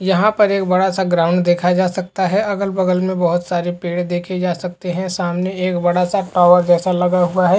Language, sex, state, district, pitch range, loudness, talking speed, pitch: Hindi, male, Uttar Pradesh, Hamirpur, 175-185 Hz, -17 LUFS, 220 wpm, 180 Hz